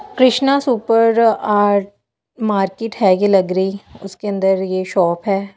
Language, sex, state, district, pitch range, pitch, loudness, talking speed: Hindi, female, Delhi, New Delhi, 190-230 Hz, 200 Hz, -16 LUFS, 140 wpm